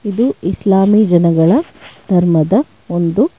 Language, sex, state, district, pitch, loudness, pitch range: Kannada, female, Karnataka, Bangalore, 195 Hz, -13 LUFS, 175-225 Hz